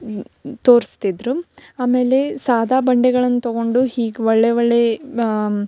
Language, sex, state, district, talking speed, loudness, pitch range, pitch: Kannada, female, Karnataka, Belgaum, 105 wpm, -17 LUFS, 225-250 Hz, 235 Hz